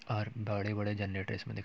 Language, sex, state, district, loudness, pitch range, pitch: Hindi, male, Bihar, Muzaffarpur, -37 LUFS, 100-110 Hz, 105 Hz